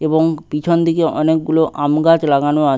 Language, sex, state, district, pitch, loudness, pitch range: Bengali, male, West Bengal, Paschim Medinipur, 160 Hz, -15 LUFS, 150-165 Hz